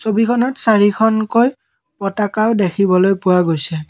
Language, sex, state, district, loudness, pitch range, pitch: Assamese, male, Assam, Kamrup Metropolitan, -15 LUFS, 190-225 Hz, 210 Hz